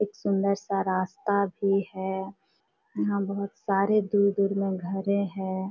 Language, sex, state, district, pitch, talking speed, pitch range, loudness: Hindi, female, Jharkhand, Sahebganj, 200 Hz, 135 wpm, 195-200 Hz, -27 LUFS